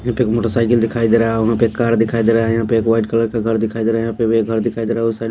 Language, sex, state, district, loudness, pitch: Hindi, male, Haryana, Charkhi Dadri, -16 LUFS, 115 Hz